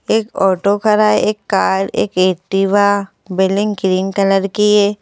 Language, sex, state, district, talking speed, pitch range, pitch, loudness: Hindi, female, Madhya Pradesh, Bhopal, 155 wpm, 190-210 Hz, 200 Hz, -15 LUFS